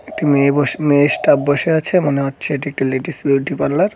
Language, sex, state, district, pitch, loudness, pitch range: Bengali, male, West Bengal, Cooch Behar, 145 Hz, -16 LUFS, 140-155 Hz